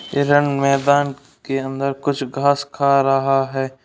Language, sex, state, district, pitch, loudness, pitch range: Hindi, male, Uttar Pradesh, Ghazipur, 140 Hz, -18 LUFS, 135-140 Hz